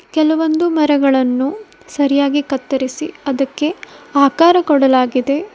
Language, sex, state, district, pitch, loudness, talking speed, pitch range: Kannada, female, Karnataka, Koppal, 290 Hz, -15 LUFS, 75 wpm, 270-320 Hz